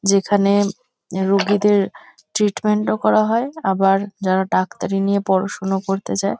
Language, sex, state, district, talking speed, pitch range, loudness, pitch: Bengali, female, West Bengal, Kolkata, 130 wpm, 195-205 Hz, -19 LUFS, 200 Hz